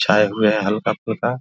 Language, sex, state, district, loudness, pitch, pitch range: Hindi, male, Bihar, Vaishali, -19 LUFS, 105 Hz, 105-115 Hz